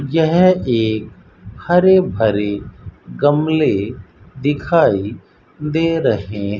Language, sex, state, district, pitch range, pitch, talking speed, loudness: Hindi, male, Rajasthan, Bikaner, 100-160 Hz, 110 Hz, 80 wpm, -16 LUFS